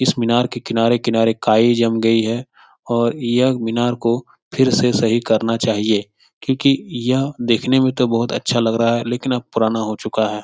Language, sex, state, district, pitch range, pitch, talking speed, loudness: Hindi, male, Bihar, Jahanabad, 115-125 Hz, 120 Hz, 195 wpm, -18 LUFS